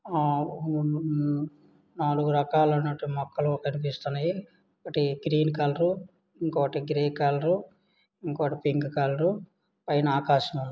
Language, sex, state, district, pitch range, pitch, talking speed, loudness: Telugu, male, Andhra Pradesh, Srikakulam, 145-165 Hz, 150 Hz, 105 wpm, -27 LUFS